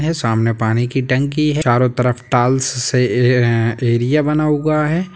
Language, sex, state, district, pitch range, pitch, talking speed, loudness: Hindi, male, Bihar, Sitamarhi, 120-150 Hz, 125 Hz, 165 wpm, -16 LUFS